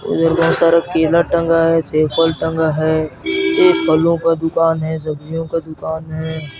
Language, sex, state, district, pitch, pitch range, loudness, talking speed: Hindi, male, Chhattisgarh, Narayanpur, 165 Hz, 160-165 Hz, -16 LUFS, 175 wpm